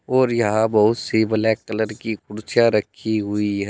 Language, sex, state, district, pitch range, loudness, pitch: Hindi, male, Uttar Pradesh, Saharanpur, 105-110 Hz, -20 LUFS, 110 Hz